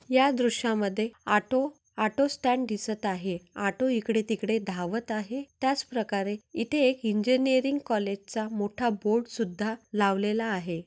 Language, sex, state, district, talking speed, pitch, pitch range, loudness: Marathi, female, Maharashtra, Nagpur, 140 wpm, 220 Hz, 205-255 Hz, -28 LUFS